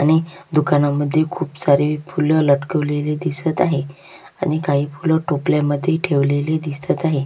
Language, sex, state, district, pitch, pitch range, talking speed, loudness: Marathi, female, Maharashtra, Sindhudurg, 150 Hz, 145-160 Hz, 130 wpm, -19 LUFS